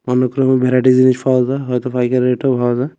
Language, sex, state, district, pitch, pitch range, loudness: Bengali, male, Tripura, West Tripura, 125 Hz, 125-130 Hz, -15 LUFS